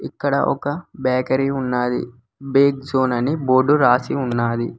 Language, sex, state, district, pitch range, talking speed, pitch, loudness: Telugu, male, Telangana, Hyderabad, 125-140 Hz, 125 wpm, 130 Hz, -19 LUFS